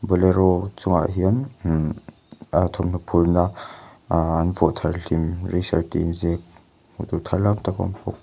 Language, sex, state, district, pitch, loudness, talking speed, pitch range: Mizo, male, Mizoram, Aizawl, 90 Hz, -22 LUFS, 160 wpm, 85-95 Hz